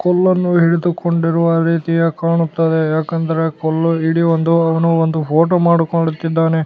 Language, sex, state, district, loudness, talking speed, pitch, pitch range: Kannada, male, Karnataka, Bellary, -15 LUFS, 110 wpm, 165 Hz, 160-170 Hz